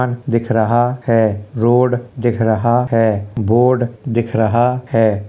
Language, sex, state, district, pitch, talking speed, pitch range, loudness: Hindi, male, Uttar Pradesh, Hamirpur, 120 Hz, 125 wpm, 110-125 Hz, -16 LUFS